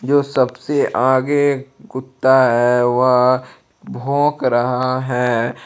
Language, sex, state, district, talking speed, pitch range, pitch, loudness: Hindi, male, Jharkhand, Palamu, 95 wpm, 125-135 Hz, 130 Hz, -16 LUFS